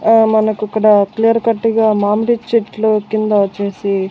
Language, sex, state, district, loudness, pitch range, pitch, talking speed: Telugu, female, Andhra Pradesh, Annamaya, -14 LUFS, 205-225 Hz, 215 Hz, 145 wpm